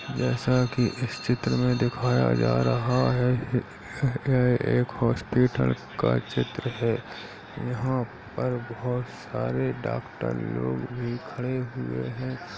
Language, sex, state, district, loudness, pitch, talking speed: Hindi, male, Uttar Pradesh, Jalaun, -27 LUFS, 120 Hz, 120 wpm